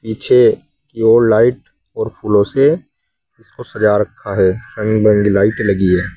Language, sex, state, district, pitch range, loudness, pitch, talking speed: Hindi, male, Uttar Pradesh, Saharanpur, 100-115 Hz, -14 LUFS, 110 Hz, 155 wpm